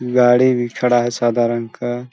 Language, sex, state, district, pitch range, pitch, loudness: Hindi, male, Chhattisgarh, Balrampur, 120-125 Hz, 120 Hz, -16 LUFS